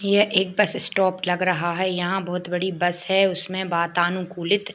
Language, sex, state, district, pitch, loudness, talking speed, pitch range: Hindi, male, Bihar, Bhagalpur, 185 Hz, -22 LUFS, 190 wpm, 175-195 Hz